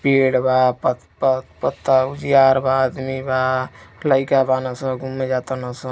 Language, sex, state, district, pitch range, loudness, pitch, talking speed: Hindi, male, Uttar Pradesh, Deoria, 130-135 Hz, -19 LUFS, 130 Hz, 170 wpm